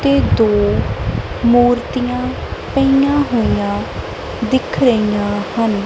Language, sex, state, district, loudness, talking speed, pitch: Punjabi, female, Punjab, Kapurthala, -16 LUFS, 80 wpm, 220 Hz